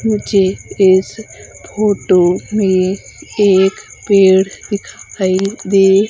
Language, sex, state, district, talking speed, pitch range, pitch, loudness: Hindi, female, Madhya Pradesh, Umaria, 80 wpm, 185-200 Hz, 190 Hz, -13 LUFS